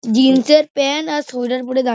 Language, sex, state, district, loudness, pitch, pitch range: Bengali, male, West Bengal, Dakshin Dinajpur, -15 LUFS, 265 Hz, 255-295 Hz